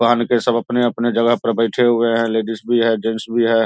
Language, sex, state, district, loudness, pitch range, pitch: Hindi, male, Bihar, Saharsa, -17 LUFS, 115-120 Hz, 115 Hz